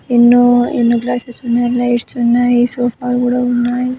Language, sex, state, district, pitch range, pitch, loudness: Telugu, female, Andhra Pradesh, Anantapur, 240-245 Hz, 245 Hz, -13 LUFS